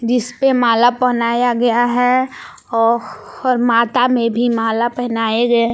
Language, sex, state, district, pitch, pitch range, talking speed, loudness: Hindi, female, Jharkhand, Palamu, 240 Hz, 230-245 Hz, 145 wpm, -15 LUFS